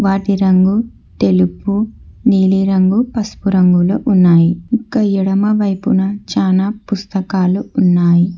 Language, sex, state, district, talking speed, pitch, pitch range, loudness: Telugu, female, Telangana, Hyderabad, 95 wpm, 195 Hz, 185-205 Hz, -14 LUFS